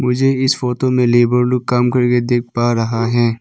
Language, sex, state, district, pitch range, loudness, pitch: Hindi, male, Arunachal Pradesh, Papum Pare, 120-125 Hz, -15 LUFS, 125 Hz